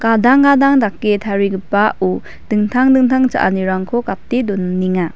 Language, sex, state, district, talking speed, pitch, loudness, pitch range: Garo, female, Meghalaya, West Garo Hills, 115 wpm, 210 Hz, -14 LUFS, 190-250 Hz